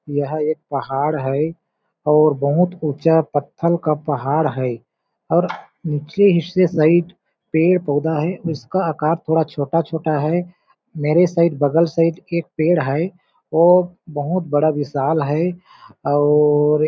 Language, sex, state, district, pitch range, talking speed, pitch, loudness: Hindi, male, Chhattisgarh, Balrampur, 150-170 Hz, 130 wpm, 160 Hz, -18 LUFS